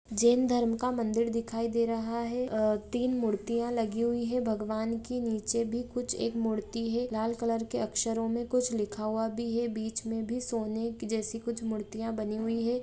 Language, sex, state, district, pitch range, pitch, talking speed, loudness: Hindi, female, Jharkhand, Jamtara, 220-235 Hz, 230 Hz, 195 wpm, -31 LUFS